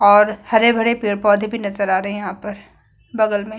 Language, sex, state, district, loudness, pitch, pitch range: Hindi, female, Bihar, Vaishali, -17 LUFS, 210 Hz, 205-220 Hz